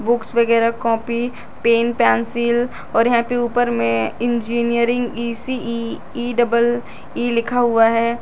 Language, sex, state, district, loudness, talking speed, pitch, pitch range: Hindi, female, Jharkhand, Garhwa, -18 LUFS, 130 wpm, 235 Hz, 230-240 Hz